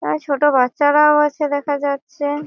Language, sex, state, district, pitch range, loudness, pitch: Bengali, female, West Bengal, Malda, 280-295 Hz, -17 LUFS, 290 Hz